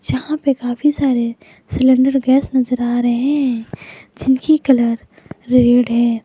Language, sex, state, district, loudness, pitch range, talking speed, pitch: Hindi, female, Jharkhand, Garhwa, -16 LUFS, 240-270 Hz, 135 wpm, 255 Hz